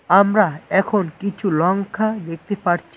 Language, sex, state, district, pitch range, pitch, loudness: Bengali, male, West Bengal, Cooch Behar, 175-205 Hz, 195 Hz, -19 LUFS